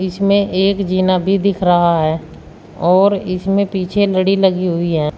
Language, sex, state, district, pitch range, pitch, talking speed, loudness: Hindi, female, Uttar Pradesh, Shamli, 180-195 Hz, 185 Hz, 160 wpm, -15 LUFS